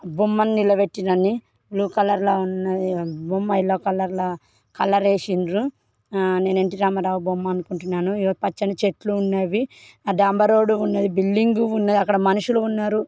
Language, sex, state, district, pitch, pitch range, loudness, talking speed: Telugu, female, Telangana, Karimnagar, 195 Hz, 185-205 Hz, -21 LUFS, 135 wpm